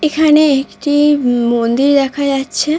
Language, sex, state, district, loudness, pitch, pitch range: Bengali, female, West Bengal, Dakshin Dinajpur, -13 LUFS, 285 Hz, 270-295 Hz